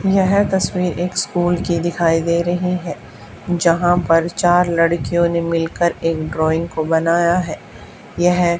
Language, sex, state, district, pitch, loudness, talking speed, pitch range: Hindi, female, Haryana, Charkhi Dadri, 170 Hz, -17 LUFS, 145 wpm, 165-175 Hz